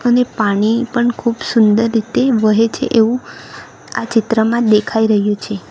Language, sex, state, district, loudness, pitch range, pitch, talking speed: Gujarati, female, Gujarat, Valsad, -15 LUFS, 215-240 Hz, 225 Hz, 145 wpm